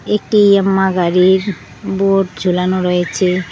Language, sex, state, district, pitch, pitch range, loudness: Bengali, female, West Bengal, Cooch Behar, 185 Hz, 180-195 Hz, -14 LUFS